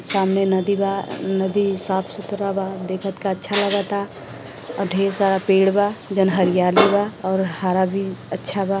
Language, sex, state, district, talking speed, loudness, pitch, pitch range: Bhojpuri, female, Uttar Pradesh, Gorakhpur, 165 wpm, -20 LUFS, 195 Hz, 190-200 Hz